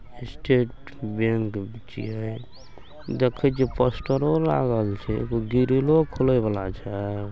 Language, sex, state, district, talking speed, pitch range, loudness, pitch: Maithili, male, Bihar, Saharsa, 105 wpm, 110-130 Hz, -24 LUFS, 120 Hz